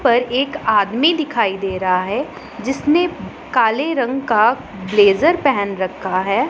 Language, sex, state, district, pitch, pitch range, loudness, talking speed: Hindi, female, Punjab, Pathankot, 235 Hz, 195-275 Hz, -17 LUFS, 140 wpm